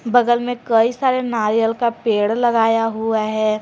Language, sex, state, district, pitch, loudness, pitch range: Hindi, female, Jharkhand, Garhwa, 225 Hz, -18 LUFS, 220-240 Hz